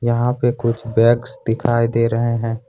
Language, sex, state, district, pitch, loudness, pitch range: Hindi, male, Jharkhand, Ranchi, 115 Hz, -18 LUFS, 115-120 Hz